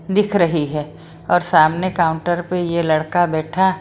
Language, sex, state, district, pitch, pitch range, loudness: Hindi, female, Maharashtra, Mumbai Suburban, 175 Hz, 160-180 Hz, -18 LUFS